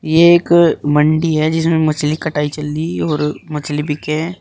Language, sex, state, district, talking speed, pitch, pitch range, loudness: Hindi, male, Uttar Pradesh, Shamli, 175 wpm, 155 Hz, 150-165 Hz, -15 LUFS